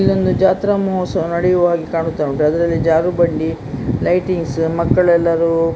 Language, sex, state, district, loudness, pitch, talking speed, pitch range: Kannada, female, Karnataka, Dakshina Kannada, -16 LUFS, 170 Hz, 135 wpm, 160-180 Hz